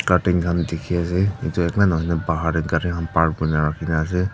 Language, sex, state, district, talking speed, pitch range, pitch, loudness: Nagamese, female, Nagaland, Dimapur, 205 wpm, 80-90 Hz, 85 Hz, -21 LUFS